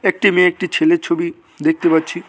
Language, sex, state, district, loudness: Bengali, male, West Bengal, Cooch Behar, -16 LUFS